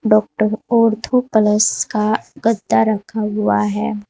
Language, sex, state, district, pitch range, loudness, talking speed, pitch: Hindi, female, Uttar Pradesh, Saharanpur, 200-225 Hz, -17 LUFS, 115 wpm, 215 Hz